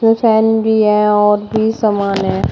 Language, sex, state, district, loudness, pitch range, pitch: Hindi, female, Uttar Pradesh, Shamli, -13 LUFS, 210-220 Hz, 215 Hz